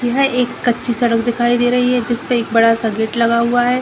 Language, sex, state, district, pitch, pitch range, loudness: Hindi, female, Uttar Pradesh, Deoria, 240 Hz, 230-245 Hz, -15 LUFS